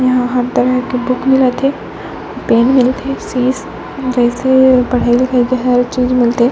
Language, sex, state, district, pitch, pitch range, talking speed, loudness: Chhattisgarhi, female, Chhattisgarh, Raigarh, 250 Hz, 245-260 Hz, 155 wpm, -13 LUFS